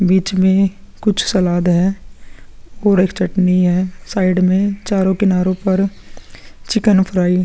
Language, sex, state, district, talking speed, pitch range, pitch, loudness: Hindi, male, Bihar, Vaishali, 135 wpm, 185-195 Hz, 190 Hz, -16 LUFS